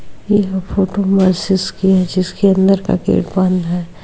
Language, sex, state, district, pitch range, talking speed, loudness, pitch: Hindi, female, Uttar Pradesh, Etah, 185-195 Hz, 165 wpm, -15 LUFS, 190 Hz